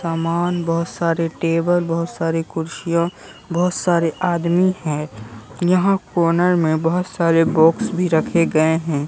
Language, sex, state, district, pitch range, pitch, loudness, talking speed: Hindi, female, Bihar, Katihar, 165-175 Hz, 170 Hz, -19 LUFS, 140 wpm